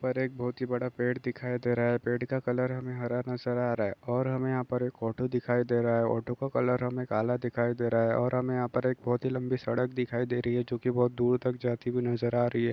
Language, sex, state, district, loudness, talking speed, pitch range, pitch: Hindi, male, Chhattisgarh, Balrampur, -30 LUFS, 290 wpm, 120-125 Hz, 125 Hz